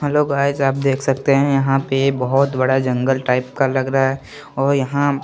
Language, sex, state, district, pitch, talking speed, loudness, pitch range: Hindi, male, Chandigarh, Chandigarh, 135 Hz, 220 wpm, -18 LUFS, 130-140 Hz